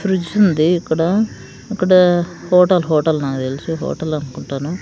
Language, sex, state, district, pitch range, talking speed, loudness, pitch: Telugu, female, Andhra Pradesh, Sri Satya Sai, 155-185 Hz, 125 wpm, -16 LUFS, 170 Hz